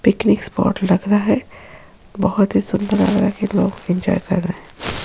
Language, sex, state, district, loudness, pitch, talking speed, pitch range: Hindi, female, Chhattisgarh, Sukma, -18 LUFS, 200 Hz, 190 wpm, 185-205 Hz